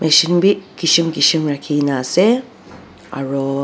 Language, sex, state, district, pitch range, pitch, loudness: Nagamese, female, Nagaland, Dimapur, 140-170 Hz, 155 Hz, -16 LUFS